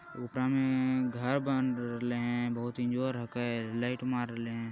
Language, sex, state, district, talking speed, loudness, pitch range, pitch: Magahi, male, Bihar, Jamui, 180 wpm, -33 LUFS, 120-130 Hz, 120 Hz